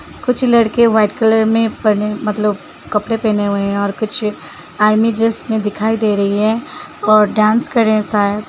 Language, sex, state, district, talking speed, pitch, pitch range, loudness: Hindi, female, Uttar Pradesh, Hamirpur, 185 wpm, 215 Hz, 210-225 Hz, -15 LUFS